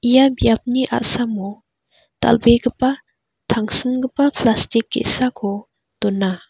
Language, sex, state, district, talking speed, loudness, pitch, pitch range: Garo, female, Meghalaya, West Garo Hills, 75 wpm, -18 LUFS, 235 Hz, 215-255 Hz